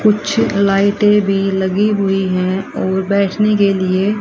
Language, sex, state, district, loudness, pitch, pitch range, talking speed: Hindi, female, Haryana, Rohtak, -15 LUFS, 200 Hz, 190-205 Hz, 130 wpm